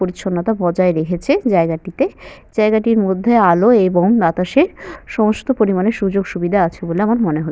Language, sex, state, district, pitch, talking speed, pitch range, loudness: Bengali, female, West Bengal, Malda, 195 Hz, 135 wpm, 175-225 Hz, -16 LUFS